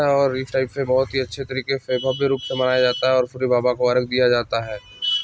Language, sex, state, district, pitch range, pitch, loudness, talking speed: Hindi, male, Chhattisgarh, Sarguja, 125-135 Hz, 130 Hz, -21 LUFS, 265 wpm